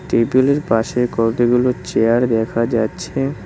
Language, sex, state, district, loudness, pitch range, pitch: Bengali, male, West Bengal, Cooch Behar, -17 LUFS, 115-125 Hz, 115 Hz